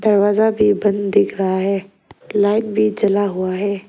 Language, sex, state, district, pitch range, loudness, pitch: Hindi, female, Arunachal Pradesh, Lower Dibang Valley, 195-210 Hz, -17 LUFS, 205 Hz